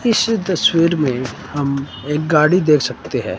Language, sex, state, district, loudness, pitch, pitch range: Hindi, male, Himachal Pradesh, Shimla, -17 LUFS, 150 Hz, 140-170 Hz